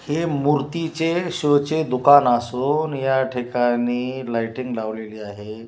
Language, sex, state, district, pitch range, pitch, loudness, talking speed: Marathi, male, Maharashtra, Washim, 120-150 Hz, 130 Hz, -21 LUFS, 105 wpm